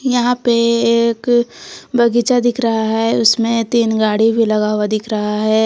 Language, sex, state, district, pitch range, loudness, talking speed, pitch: Hindi, female, Jharkhand, Palamu, 220-240 Hz, -15 LUFS, 170 wpm, 230 Hz